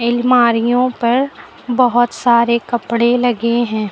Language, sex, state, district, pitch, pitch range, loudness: Hindi, female, Uttar Pradesh, Lucknow, 240 Hz, 235-245 Hz, -15 LUFS